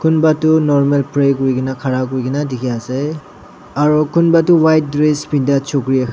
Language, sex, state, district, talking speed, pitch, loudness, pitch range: Nagamese, male, Nagaland, Dimapur, 145 wpm, 145 Hz, -15 LUFS, 130-155 Hz